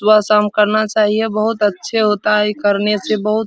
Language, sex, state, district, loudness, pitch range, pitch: Hindi, male, Bihar, Supaul, -15 LUFS, 210-215 Hz, 210 Hz